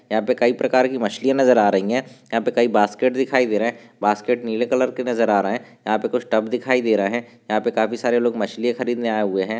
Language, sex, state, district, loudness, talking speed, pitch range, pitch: Hindi, male, Maharashtra, Sindhudurg, -20 LUFS, 280 wpm, 110-125 Hz, 120 Hz